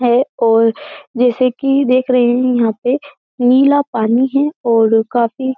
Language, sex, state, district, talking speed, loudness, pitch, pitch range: Hindi, female, Uttar Pradesh, Jyotiba Phule Nagar, 160 wpm, -14 LUFS, 250 Hz, 235-270 Hz